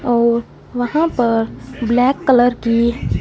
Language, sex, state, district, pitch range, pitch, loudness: Hindi, female, Punjab, Fazilka, 235-250 Hz, 240 Hz, -16 LUFS